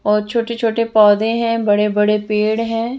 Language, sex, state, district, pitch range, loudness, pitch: Hindi, female, Chandigarh, Chandigarh, 210-230 Hz, -16 LUFS, 220 Hz